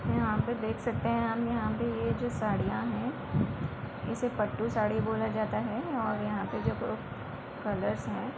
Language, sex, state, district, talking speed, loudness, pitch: Hindi, female, Uttar Pradesh, Muzaffarnagar, 170 wpm, -32 LUFS, 120 Hz